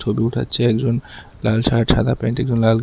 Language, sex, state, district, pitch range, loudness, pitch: Bengali, male, Tripura, West Tripura, 115-120 Hz, -18 LUFS, 115 Hz